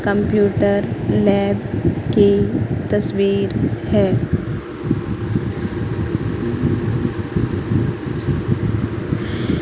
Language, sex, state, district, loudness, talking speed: Hindi, female, Madhya Pradesh, Katni, -19 LUFS, 30 wpm